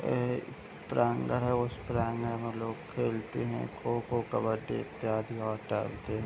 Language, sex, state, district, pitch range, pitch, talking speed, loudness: Hindi, male, Bihar, Gopalganj, 110-120 Hz, 115 Hz, 135 wpm, -33 LUFS